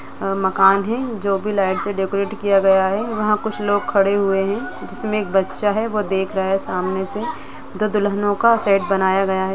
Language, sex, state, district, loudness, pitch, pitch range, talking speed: Hindi, female, Jharkhand, Sahebganj, -19 LUFS, 200 Hz, 195-210 Hz, 190 wpm